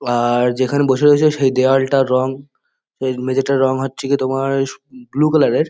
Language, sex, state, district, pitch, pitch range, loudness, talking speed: Bengali, male, West Bengal, Kolkata, 135 Hz, 130-140 Hz, -16 LUFS, 170 wpm